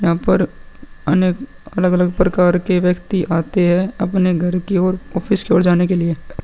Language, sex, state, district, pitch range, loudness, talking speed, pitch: Hindi, male, Uttar Pradesh, Muzaffarnagar, 175-185 Hz, -17 LUFS, 175 wpm, 180 Hz